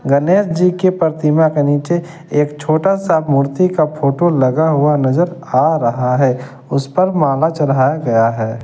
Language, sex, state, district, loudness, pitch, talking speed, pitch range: Hindi, male, Bihar, West Champaran, -15 LUFS, 150 Hz, 165 wpm, 135-170 Hz